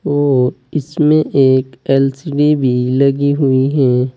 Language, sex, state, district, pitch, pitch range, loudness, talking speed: Hindi, male, Uttar Pradesh, Saharanpur, 135 Hz, 130-145 Hz, -14 LUFS, 115 wpm